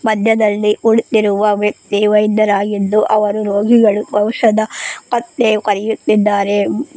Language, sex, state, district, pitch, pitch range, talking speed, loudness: Kannada, female, Karnataka, Koppal, 215 Hz, 205-220 Hz, 75 wpm, -14 LUFS